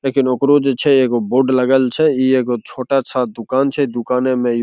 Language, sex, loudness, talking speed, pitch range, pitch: Maithili, male, -16 LUFS, 220 wpm, 125-135 Hz, 130 Hz